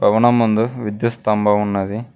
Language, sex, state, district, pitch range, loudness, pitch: Telugu, male, Telangana, Mahabubabad, 105-115 Hz, -17 LUFS, 110 Hz